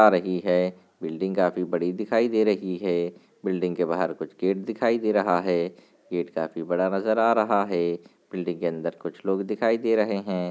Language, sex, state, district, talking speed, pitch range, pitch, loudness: Hindi, male, Uttar Pradesh, Varanasi, 200 wpm, 90-105 Hz, 90 Hz, -25 LUFS